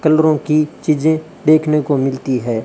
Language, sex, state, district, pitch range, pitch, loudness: Hindi, male, Rajasthan, Bikaner, 135-155 Hz, 155 Hz, -16 LUFS